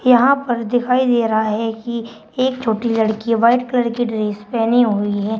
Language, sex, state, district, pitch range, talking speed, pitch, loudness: Hindi, female, Uttar Pradesh, Shamli, 220-245 Hz, 190 wpm, 230 Hz, -17 LUFS